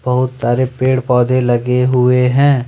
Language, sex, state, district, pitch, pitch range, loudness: Hindi, male, Jharkhand, Ranchi, 125 Hz, 125-130 Hz, -14 LUFS